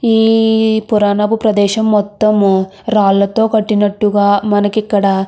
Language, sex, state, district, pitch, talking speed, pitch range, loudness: Telugu, female, Andhra Pradesh, Krishna, 210 Hz, 100 wpm, 200-220 Hz, -12 LUFS